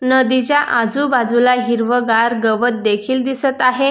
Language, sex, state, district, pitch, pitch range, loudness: Marathi, female, Maharashtra, Dhule, 250 Hz, 235-260 Hz, -15 LUFS